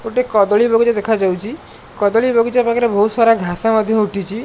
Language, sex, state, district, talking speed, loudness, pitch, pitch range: Odia, male, Odisha, Malkangiri, 160 wpm, -15 LUFS, 225 Hz, 210-235 Hz